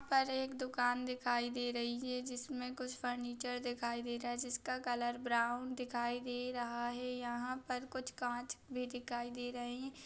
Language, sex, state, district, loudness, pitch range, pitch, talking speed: Hindi, female, Maharashtra, Dhule, -40 LUFS, 240-255 Hz, 245 Hz, 175 wpm